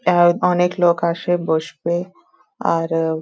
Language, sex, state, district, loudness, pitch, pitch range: Bengali, female, West Bengal, Dakshin Dinajpur, -19 LUFS, 170 Hz, 165-175 Hz